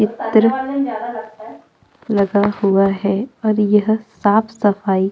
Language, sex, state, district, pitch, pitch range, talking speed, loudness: Hindi, female, Chhattisgarh, Jashpur, 215 Hz, 200-225 Hz, 105 wpm, -17 LUFS